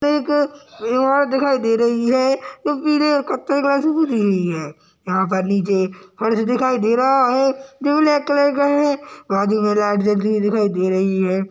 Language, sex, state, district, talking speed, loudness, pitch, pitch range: Hindi, male, Uttarakhand, Tehri Garhwal, 155 wpm, -18 LUFS, 250 Hz, 200-285 Hz